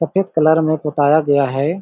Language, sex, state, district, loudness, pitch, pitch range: Hindi, male, Chhattisgarh, Balrampur, -16 LUFS, 155 Hz, 145-160 Hz